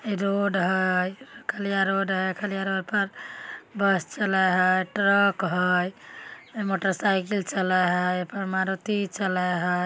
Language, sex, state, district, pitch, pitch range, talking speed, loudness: Maithili, female, Bihar, Samastipur, 195 Hz, 185-200 Hz, 130 wpm, -25 LUFS